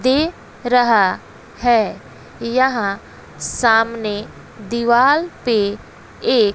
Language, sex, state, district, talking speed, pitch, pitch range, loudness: Hindi, female, Bihar, West Champaran, 75 wpm, 235 Hz, 225-260 Hz, -17 LUFS